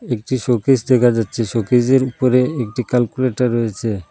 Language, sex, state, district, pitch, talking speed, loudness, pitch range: Bengali, male, Assam, Hailakandi, 125 Hz, 130 wpm, -17 LUFS, 115-130 Hz